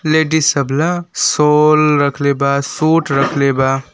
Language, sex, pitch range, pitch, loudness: Bhojpuri, male, 140-155 Hz, 145 Hz, -14 LUFS